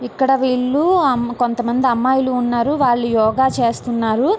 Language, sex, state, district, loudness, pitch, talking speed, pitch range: Telugu, female, Andhra Pradesh, Srikakulam, -17 LUFS, 250 Hz, 135 wpm, 240-265 Hz